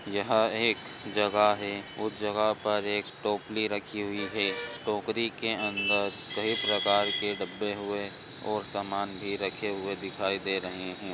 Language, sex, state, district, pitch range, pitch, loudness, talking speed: Hindi, male, Maharashtra, Pune, 100-105 Hz, 105 Hz, -30 LUFS, 155 wpm